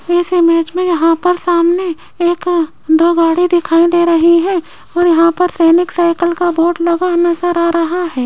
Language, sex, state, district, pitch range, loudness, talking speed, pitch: Hindi, female, Rajasthan, Jaipur, 335-350 Hz, -12 LUFS, 180 wpm, 345 Hz